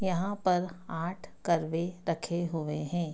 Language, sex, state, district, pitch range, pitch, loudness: Hindi, female, Bihar, East Champaran, 165-180 Hz, 170 Hz, -32 LUFS